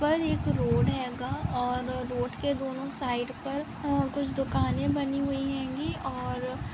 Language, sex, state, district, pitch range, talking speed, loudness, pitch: Hindi, female, Bihar, Samastipur, 245-280 Hz, 160 wpm, -30 LUFS, 270 Hz